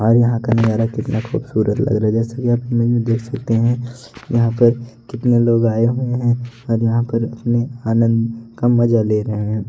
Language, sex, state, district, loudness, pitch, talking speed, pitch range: Hindi, male, Odisha, Nuapada, -17 LUFS, 115 Hz, 200 wpm, 115-120 Hz